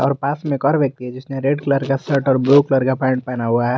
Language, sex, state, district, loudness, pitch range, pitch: Hindi, male, Jharkhand, Garhwa, -18 LUFS, 130-140 Hz, 135 Hz